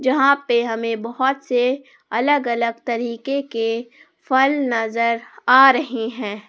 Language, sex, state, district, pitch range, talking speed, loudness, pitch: Hindi, female, Jharkhand, Palamu, 230-270 Hz, 130 wpm, -19 LUFS, 240 Hz